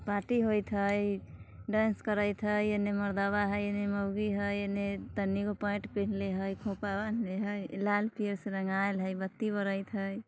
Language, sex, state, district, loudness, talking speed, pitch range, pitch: Bajjika, female, Bihar, Vaishali, -33 LUFS, 170 wpm, 200-210 Hz, 205 Hz